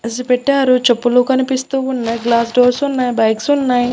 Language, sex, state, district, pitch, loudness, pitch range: Telugu, female, Andhra Pradesh, Annamaya, 250 Hz, -15 LUFS, 240-260 Hz